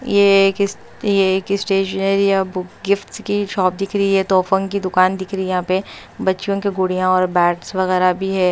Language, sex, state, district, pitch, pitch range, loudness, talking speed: Hindi, female, Maharashtra, Mumbai Suburban, 195 Hz, 185-200 Hz, -18 LUFS, 205 wpm